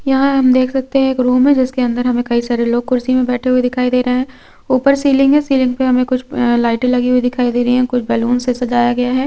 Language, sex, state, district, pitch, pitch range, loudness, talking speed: Hindi, female, Chhattisgarh, Korba, 250 Hz, 245-260 Hz, -14 LUFS, 270 wpm